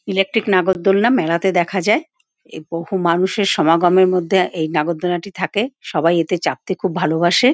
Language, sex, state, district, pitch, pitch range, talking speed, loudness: Bengali, female, West Bengal, Paschim Medinipur, 185 Hz, 170-200 Hz, 150 wpm, -17 LUFS